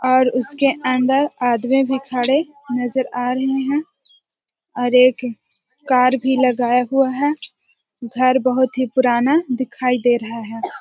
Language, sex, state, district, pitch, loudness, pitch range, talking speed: Hindi, female, Bihar, Jahanabad, 255 Hz, -17 LUFS, 250-270 Hz, 140 wpm